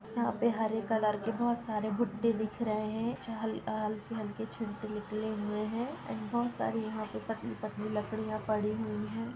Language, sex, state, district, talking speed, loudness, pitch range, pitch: Hindi, female, Uttar Pradesh, Jalaun, 190 wpm, -35 LUFS, 215-225 Hz, 220 Hz